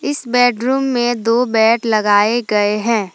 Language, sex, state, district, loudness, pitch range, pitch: Hindi, female, Jharkhand, Palamu, -15 LUFS, 215-245 Hz, 230 Hz